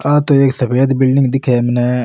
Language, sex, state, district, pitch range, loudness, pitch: Rajasthani, male, Rajasthan, Nagaur, 125-135 Hz, -13 LUFS, 130 Hz